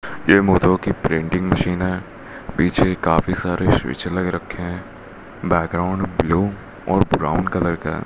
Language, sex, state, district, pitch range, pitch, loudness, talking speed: Hindi, male, Rajasthan, Bikaner, 85-95 Hz, 90 Hz, -20 LUFS, 150 wpm